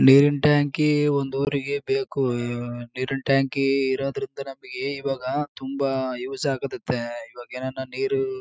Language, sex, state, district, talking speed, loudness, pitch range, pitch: Kannada, male, Karnataka, Bellary, 115 wpm, -24 LUFS, 130-145 Hz, 135 Hz